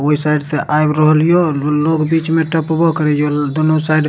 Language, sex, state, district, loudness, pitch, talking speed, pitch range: Maithili, male, Bihar, Supaul, -14 LUFS, 155 Hz, 235 wpm, 150-160 Hz